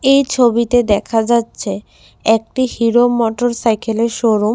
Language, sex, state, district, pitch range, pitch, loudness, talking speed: Bengali, female, Tripura, West Tripura, 225-245 Hz, 230 Hz, -15 LUFS, 120 wpm